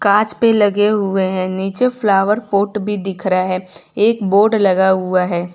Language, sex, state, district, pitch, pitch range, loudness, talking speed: Hindi, female, Gujarat, Valsad, 200 Hz, 185-210 Hz, -15 LUFS, 185 wpm